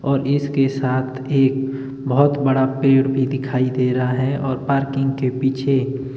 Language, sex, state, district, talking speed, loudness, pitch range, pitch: Hindi, male, Himachal Pradesh, Shimla, 155 wpm, -19 LUFS, 130-135 Hz, 135 Hz